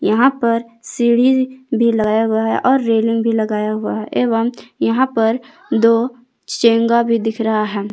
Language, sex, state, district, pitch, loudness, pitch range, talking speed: Hindi, female, Jharkhand, Palamu, 230 Hz, -16 LUFS, 225-245 Hz, 165 wpm